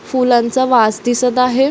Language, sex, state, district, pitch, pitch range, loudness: Marathi, female, Maharashtra, Solapur, 250 Hz, 240-255 Hz, -14 LUFS